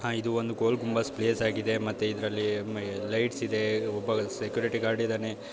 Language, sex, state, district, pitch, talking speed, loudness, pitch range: Kannada, male, Karnataka, Bijapur, 110 Hz, 160 wpm, -29 LUFS, 110-115 Hz